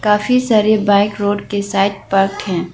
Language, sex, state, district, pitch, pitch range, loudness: Hindi, female, Arunachal Pradesh, Lower Dibang Valley, 205 Hz, 195-210 Hz, -15 LUFS